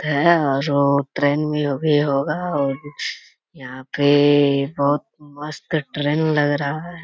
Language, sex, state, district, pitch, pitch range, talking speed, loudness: Hindi, male, Bihar, Jamui, 145 Hz, 140-150 Hz, 100 wpm, -19 LUFS